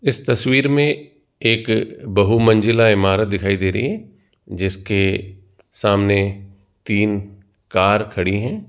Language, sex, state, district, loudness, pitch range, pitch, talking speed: Hindi, male, Rajasthan, Jaipur, -18 LUFS, 95-115 Hz, 100 Hz, 110 wpm